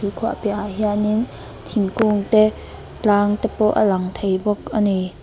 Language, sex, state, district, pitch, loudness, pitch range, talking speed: Mizo, female, Mizoram, Aizawl, 210 Hz, -20 LUFS, 200-215 Hz, 150 wpm